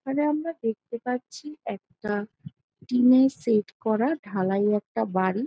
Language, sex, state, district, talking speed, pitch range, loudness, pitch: Bengali, female, West Bengal, Jhargram, 120 wpm, 200-260 Hz, -26 LUFS, 225 Hz